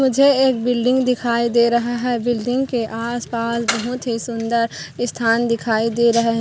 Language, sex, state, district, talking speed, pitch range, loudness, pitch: Hindi, female, Chhattisgarh, Korba, 170 wpm, 230-245 Hz, -19 LUFS, 235 Hz